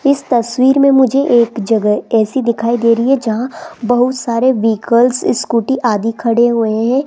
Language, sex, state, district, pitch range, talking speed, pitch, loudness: Hindi, female, Rajasthan, Jaipur, 230-265 Hz, 170 wpm, 240 Hz, -13 LUFS